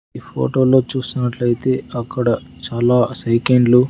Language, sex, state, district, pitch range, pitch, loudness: Telugu, male, Andhra Pradesh, Sri Satya Sai, 120-130 Hz, 125 Hz, -17 LUFS